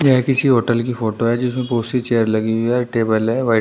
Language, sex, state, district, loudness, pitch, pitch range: Hindi, male, Uttar Pradesh, Shamli, -18 LUFS, 120 Hz, 115-125 Hz